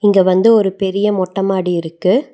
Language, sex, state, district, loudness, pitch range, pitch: Tamil, female, Tamil Nadu, Nilgiris, -14 LUFS, 185-205 Hz, 195 Hz